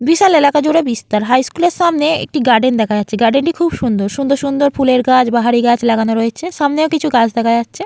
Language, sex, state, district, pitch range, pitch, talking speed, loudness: Bengali, female, West Bengal, Jalpaiguri, 230-305 Hz, 255 Hz, 220 wpm, -13 LUFS